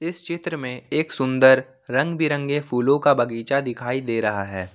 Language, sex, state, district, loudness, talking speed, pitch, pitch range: Hindi, male, Jharkhand, Ranchi, -21 LUFS, 175 wpm, 130 Hz, 120-145 Hz